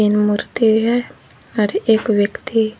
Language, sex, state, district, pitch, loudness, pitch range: Hindi, female, Uttar Pradesh, Lucknow, 220 Hz, -17 LUFS, 210-225 Hz